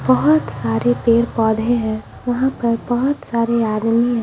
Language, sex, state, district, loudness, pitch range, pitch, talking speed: Hindi, female, Bihar, Patna, -18 LUFS, 155-240 Hz, 230 Hz, 140 wpm